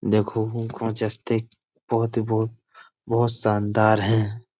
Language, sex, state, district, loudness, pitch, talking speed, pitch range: Hindi, male, Uttar Pradesh, Budaun, -23 LUFS, 110 Hz, 105 wpm, 110-115 Hz